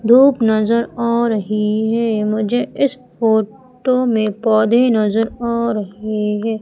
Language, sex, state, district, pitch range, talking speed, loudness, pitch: Hindi, female, Madhya Pradesh, Umaria, 215-235 Hz, 125 wpm, -17 LUFS, 225 Hz